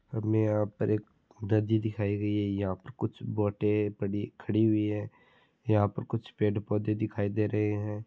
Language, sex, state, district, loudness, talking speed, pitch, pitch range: Marwari, male, Rajasthan, Churu, -30 LUFS, 195 wpm, 105 Hz, 105-110 Hz